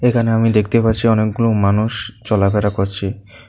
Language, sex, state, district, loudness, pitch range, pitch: Bengali, male, Tripura, South Tripura, -16 LUFS, 100-115 Hz, 110 Hz